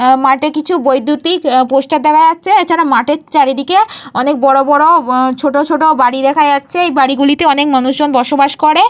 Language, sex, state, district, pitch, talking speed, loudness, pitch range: Bengali, female, Jharkhand, Jamtara, 290 Hz, 160 wpm, -11 LUFS, 270-315 Hz